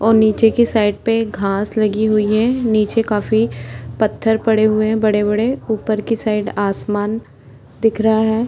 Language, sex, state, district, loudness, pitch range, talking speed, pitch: Hindi, female, Maharashtra, Chandrapur, -17 LUFS, 210-225 Hz, 165 wpm, 215 Hz